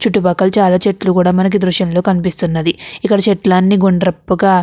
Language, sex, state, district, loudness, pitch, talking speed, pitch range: Telugu, female, Andhra Pradesh, Krishna, -13 LUFS, 185 Hz, 155 wpm, 180-200 Hz